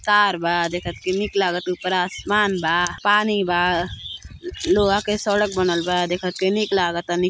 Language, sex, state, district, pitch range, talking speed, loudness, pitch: Hindi, female, Uttar Pradesh, Gorakhpur, 175-205 Hz, 180 wpm, -21 LUFS, 185 Hz